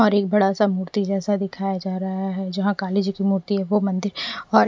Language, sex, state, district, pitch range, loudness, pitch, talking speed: Hindi, female, Maharashtra, Gondia, 190-205 Hz, -22 LUFS, 195 Hz, 245 wpm